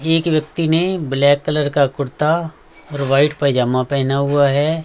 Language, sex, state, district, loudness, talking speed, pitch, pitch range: Hindi, male, Haryana, Rohtak, -17 LUFS, 160 wpm, 145 Hz, 140-160 Hz